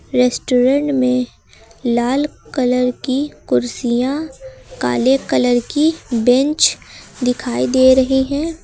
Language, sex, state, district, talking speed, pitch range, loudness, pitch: Hindi, female, Uttar Pradesh, Lucknow, 95 wpm, 240-275 Hz, -16 LUFS, 250 Hz